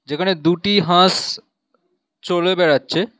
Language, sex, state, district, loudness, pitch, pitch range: Bengali, male, West Bengal, Alipurduar, -16 LUFS, 180 Hz, 175-190 Hz